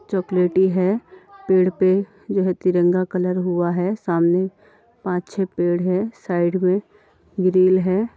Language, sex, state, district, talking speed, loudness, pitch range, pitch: Hindi, female, Uttar Pradesh, Deoria, 130 wpm, -20 LUFS, 180-195 Hz, 185 Hz